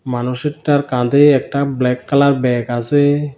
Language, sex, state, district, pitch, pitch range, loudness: Bengali, male, Tripura, South Tripura, 140 Hz, 125-145 Hz, -15 LUFS